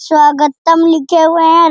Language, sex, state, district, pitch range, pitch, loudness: Hindi, female, Bihar, Jamui, 300-330 Hz, 325 Hz, -10 LUFS